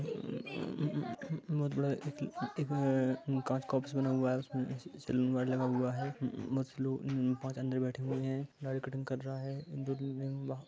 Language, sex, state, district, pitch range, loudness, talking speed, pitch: Hindi, male, Jharkhand, Sahebganj, 130-135 Hz, -36 LUFS, 145 wpm, 135 Hz